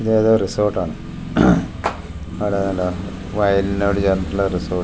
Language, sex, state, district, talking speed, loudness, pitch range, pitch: Malayalam, male, Kerala, Wayanad, 110 wpm, -19 LUFS, 90-100 Hz, 95 Hz